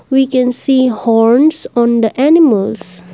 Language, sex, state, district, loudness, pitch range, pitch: English, female, Assam, Kamrup Metropolitan, -11 LUFS, 225-265 Hz, 240 Hz